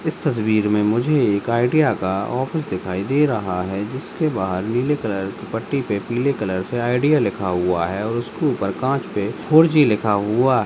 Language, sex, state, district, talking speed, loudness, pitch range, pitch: Hindi, male, Rajasthan, Nagaur, 200 wpm, -20 LUFS, 95-135 Hz, 110 Hz